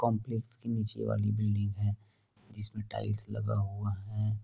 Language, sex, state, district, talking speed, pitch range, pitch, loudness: Hindi, male, Goa, North and South Goa, 150 wpm, 105-110 Hz, 105 Hz, -34 LUFS